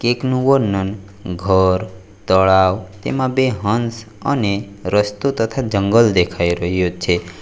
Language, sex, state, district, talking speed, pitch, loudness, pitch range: Gujarati, male, Gujarat, Valsad, 115 wpm, 100 Hz, -17 LUFS, 95-115 Hz